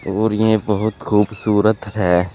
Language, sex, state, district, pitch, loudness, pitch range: Hindi, male, Uttar Pradesh, Saharanpur, 105 Hz, -17 LUFS, 100-110 Hz